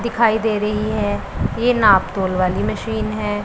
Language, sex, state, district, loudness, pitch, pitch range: Hindi, female, Punjab, Pathankot, -18 LUFS, 210 Hz, 185-220 Hz